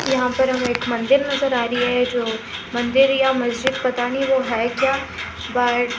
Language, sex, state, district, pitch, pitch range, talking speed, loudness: Hindi, female, Haryana, Charkhi Dadri, 250 Hz, 240-265 Hz, 180 wpm, -20 LUFS